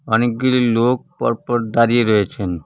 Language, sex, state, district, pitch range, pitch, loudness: Bengali, male, West Bengal, Cooch Behar, 110-120 Hz, 115 Hz, -17 LUFS